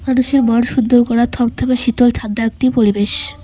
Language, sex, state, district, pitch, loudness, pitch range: Bengali, female, West Bengal, Cooch Behar, 240 Hz, -14 LUFS, 225-255 Hz